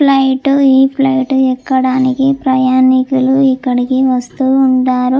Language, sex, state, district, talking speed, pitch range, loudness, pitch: Telugu, female, Andhra Pradesh, Chittoor, 90 wpm, 255-270 Hz, -11 LUFS, 260 Hz